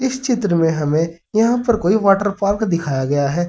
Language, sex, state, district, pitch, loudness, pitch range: Hindi, male, Uttar Pradesh, Saharanpur, 195 Hz, -17 LUFS, 165-220 Hz